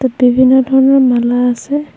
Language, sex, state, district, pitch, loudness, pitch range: Assamese, female, Assam, Hailakandi, 260 Hz, -11 LUFS, 245-265 Hz